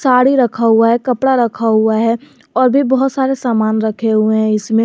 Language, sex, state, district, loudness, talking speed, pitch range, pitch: Hindi, male, Jharkhand, Garhwa, -14 LUFS, 210 wpm, 220-260 Hz, 235 Hz